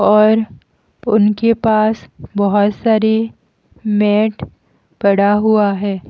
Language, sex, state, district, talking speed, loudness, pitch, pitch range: Hindi, female, Haryana, Jhajjar, 90 wpm, -15 LUFS, 215 Hz, 205-220 Hz